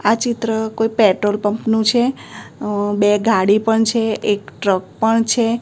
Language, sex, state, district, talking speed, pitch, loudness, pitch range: Gujarati, female, Gujarat, Gandhinagar, 150 wpm, 220 Hz, -17 LUFS, 205-225 Hz